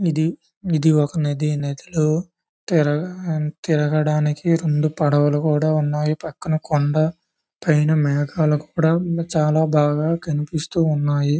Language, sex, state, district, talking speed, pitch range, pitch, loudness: Telugu, male, Andhra Pradesh, Visakhapatnam, 95 wpm, 150-165 Hz, 155 Hz, -20 LUFS